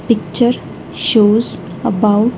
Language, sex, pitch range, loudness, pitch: English, female, 210-235 Hz, -15 LUFS, 220 Hz